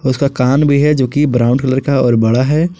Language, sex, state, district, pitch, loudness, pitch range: Hindi, male, Jharkhand, Garhwa, 135 Hz, -13 LUFS, 125-145 Hz